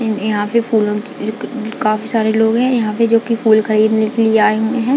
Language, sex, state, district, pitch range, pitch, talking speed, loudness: Hindi, female, Chhattisgarh, Bilaspur, 215-230 Hz, 220 Hz, 240 wpm, -15 LUFS